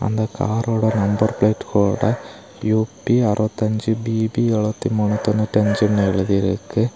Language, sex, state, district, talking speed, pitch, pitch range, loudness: Tamil, male, Tamil Nadu, Kanyakumari, 130 wpm, 110 Hz, 105-110 Hz, -19 LUFS